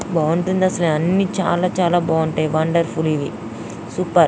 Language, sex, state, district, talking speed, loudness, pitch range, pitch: Telugu, female, Andhra Pradesh, Anantapur, 140 wpm, -19 LUFS, 155-180 Hz, 170 Hz